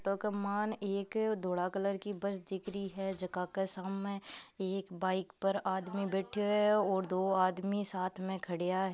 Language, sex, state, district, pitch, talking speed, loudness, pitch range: Marwari, female, Rajasthan, Nagaur, 195 Hz, 190 wpm, -35 LUFS, 185-200 Hz